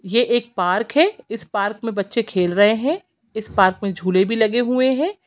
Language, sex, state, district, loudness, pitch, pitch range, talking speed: Hindi, female, Chhattisgarh, Sukma, -19 LUFS, 225 Hz, 200-250 Hz, 215 wpm